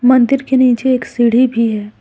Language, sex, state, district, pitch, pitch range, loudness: Hindi, female, Jharkhand, Deoghar, 250 Hz, 235-255 Hz, -13 LUFS